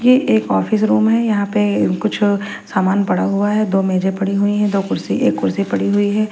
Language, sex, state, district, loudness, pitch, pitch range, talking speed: Hindi, female, Punjab, Fazilka, -16 LUFS, 200 Hz, 190-215 Hz, 235 wpm